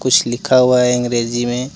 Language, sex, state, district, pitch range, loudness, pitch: Hindi, male, Jharkhand, Deoghar, 120-125 Hz, -15 LUFS, 125 Hz